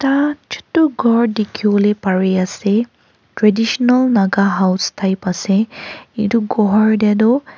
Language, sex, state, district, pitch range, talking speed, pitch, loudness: Nagamese, female, Nagaland, Kohima, 200-235 Hz, 125 wpm, 215 Hz, -15 LUFS